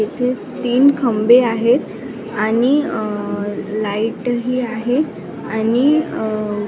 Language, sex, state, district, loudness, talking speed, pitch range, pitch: Marathi, female, Maharashtra, Washim, -17 LUFS, 110 wpm, 215-250 Hz, 235 Hz